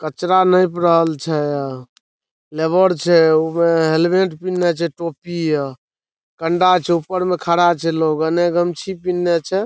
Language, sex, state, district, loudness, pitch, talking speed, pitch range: Maithili, male, Bihar, Saharsa, -17 LUFS, 170 Hz, 150 wpm, 160-180 Hz